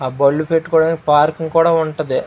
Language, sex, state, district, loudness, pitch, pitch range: Telugu, male, Andhra Pradesh, Srikakulam, -15 LUFS, 160 Hz, 150-165 Hz